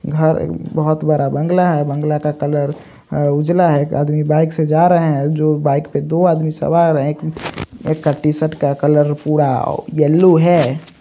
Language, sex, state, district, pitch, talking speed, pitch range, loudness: Hindi, male, Bihar, East Champaran, 150 Hz, 175 wpm, 145-160 Hz, -15 LUFS